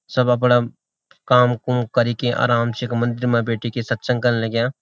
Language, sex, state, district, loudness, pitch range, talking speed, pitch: Garhwali, male, Uttarakhand, Uttarkashi, -19 LUFS, 120-125 Hz, 185 wpm, 120 Hz